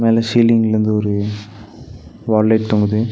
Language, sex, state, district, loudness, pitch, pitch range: Tamil, male, Tamil Nadu, Nilgiris, -15 LUFS, 110 Hz, 105-115 Hz